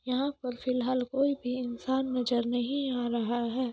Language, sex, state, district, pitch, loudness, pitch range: Hindi, female, Bihar, Madhepura, 250 Hz, -31 LUFS, 245-260 Hz